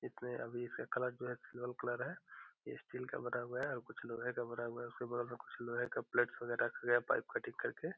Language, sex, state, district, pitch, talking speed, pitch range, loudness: Hindi, male, Bihar, Gopalganj, 120 Hz, 265 wpm, 120-125 Hz, -41 LUFS